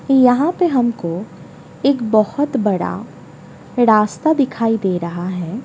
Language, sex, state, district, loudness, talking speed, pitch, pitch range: Hindi, female, Delhi, New Delhi, -17 LUFS, 115 wpm, 225 Hz, 185-265 Hz